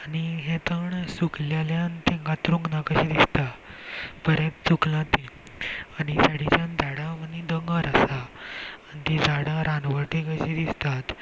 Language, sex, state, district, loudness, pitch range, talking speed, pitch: Konkani, male, Goa, North and South Goa, -25 LUFS, 150-165 Hz, 130 wpm, 155 Hz